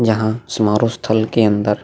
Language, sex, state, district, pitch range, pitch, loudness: Hindi, male, Goa, North and South Goa, 105-115 Hz, 110 Hz, -17 LUFS